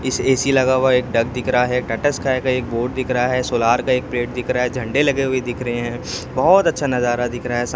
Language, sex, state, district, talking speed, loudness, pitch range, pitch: Hindi, male, Chhattisgarh, Raipur, 280 wpm, -19 LUFS, 120-130 Hz, 125 Hz